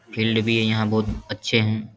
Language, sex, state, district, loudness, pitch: Hindi, male, Bihar, Samastipur, -22 LUFS, 110 Hz